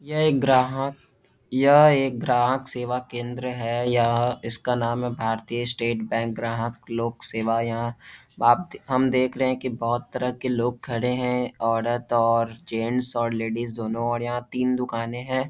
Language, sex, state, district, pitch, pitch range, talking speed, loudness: Hindi, male, Bihar, Jahanabad, 120 Hz, 115-125 Hz, 165 wpm, -24 LUFS